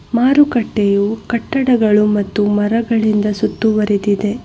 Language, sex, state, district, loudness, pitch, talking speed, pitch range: Kannada, female, Karnataka, Bangalore, -15 LUFS, 215 Hz, 65 wpm, 205-235 Hz